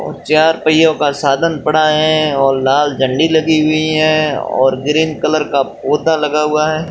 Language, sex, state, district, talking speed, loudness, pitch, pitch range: Hindi, male, Rajasthan, Jaisalmer, 180 wpm, -13 LUFS, 155 Hz, 145-155 Hz